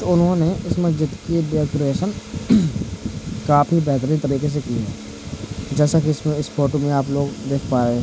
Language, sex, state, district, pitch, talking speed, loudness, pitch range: Hindi, male, Uttar Pradesh, Jalaun, 145 Hz, 165 wpm, -20 LUFS, 130-160 Hz